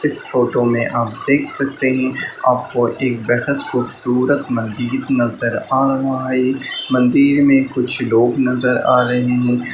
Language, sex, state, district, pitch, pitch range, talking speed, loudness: Hindi, male, Bihar, Lakhisarai, 125 Hz, 120-135 Hz, 150 wpm, -16 LUFS